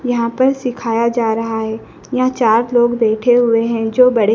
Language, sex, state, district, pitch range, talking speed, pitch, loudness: Hindi, female, Madhya Pradesh, Dhar, 225-250 Hz, 195 wpm, 235 Hz, -15 LUFS